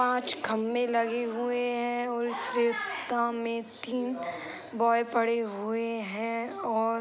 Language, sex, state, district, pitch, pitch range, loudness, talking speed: Hindi, female, Bihar, East Champaran, 235 Hz, 230-245 Hz, -30 LUFS, 135 wpm